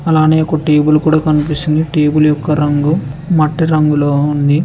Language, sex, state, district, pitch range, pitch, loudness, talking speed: Telugu, male, Telangana, Mahabubabad, 150-155 Hz, 150 Hz, -13 LUFS, 140 wpm